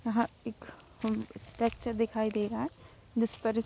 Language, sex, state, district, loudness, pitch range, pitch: Hindi, female, Jharkhand, Sahebganj, -33 LUFS, 225-230 Hz, 230 Hz